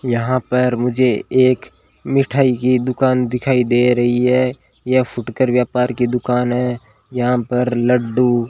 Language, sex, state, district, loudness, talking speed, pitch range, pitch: Hindi, male, Rajasthan, Bikaner, -17 LUFS, 140 wpm, 120-130 Hz, 125 Hz